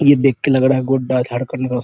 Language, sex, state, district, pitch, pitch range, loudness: Hindi, male, Bihar, Araria, 130 Hz, 125-135 Hz, -16 LUFS